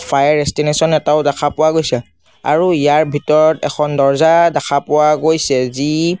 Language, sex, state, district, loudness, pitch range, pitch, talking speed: Assamese, male, Assam, Sonitpur, -14 LUFS, 145-155 Hz, 150 Hz, 145 wpm